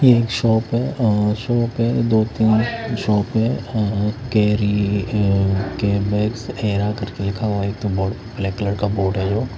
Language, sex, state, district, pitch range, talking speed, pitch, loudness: Hindi, male, Odisha, Khordha, 100-115 Hz, 170 wpm, 105 Hz, -20 LUFS